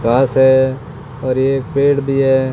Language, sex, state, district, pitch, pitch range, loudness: Hindi, male, Rajasthan, Bikaner, 130 Hz, 130-135 Hz, -14 LUFS